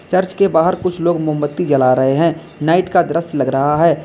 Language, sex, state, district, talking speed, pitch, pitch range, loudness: Hindi, male, Uttar Pradesh, Lalitpur, 220 wpm, 165 Hz, 150-175 Hz, -15 LUFS